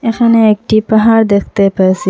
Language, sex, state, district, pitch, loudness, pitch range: Bengali, female, Assam, Hailakandi, 215 Hz, -10 LUFS, 200-225 Hz